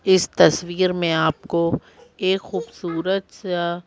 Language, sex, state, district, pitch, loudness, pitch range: Hindi, female, Madhya Pradesh, Bhopal, 180 Hz, -21 LUFS, 170-190 Hz